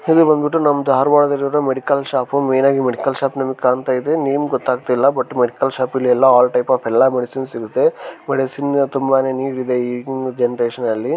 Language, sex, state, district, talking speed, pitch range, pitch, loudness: Kannada, male, Karnataka, Dharwad, 185 wpm, 125-140 Hz, 135 Hz, -17 LUFS